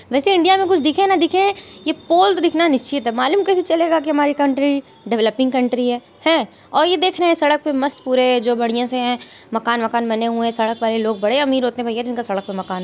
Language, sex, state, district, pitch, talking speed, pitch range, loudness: Hindi, female, Uttar Pradesh, Varanasi, 270 Hz, 245 wpm, 235-330 Hz, -18 LUFS